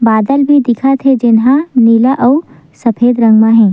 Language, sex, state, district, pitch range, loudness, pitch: Chhattisgarhi, female, Chhattisgarh, Sukma, 230-270 Hz, -9 LUFS, 245 Hz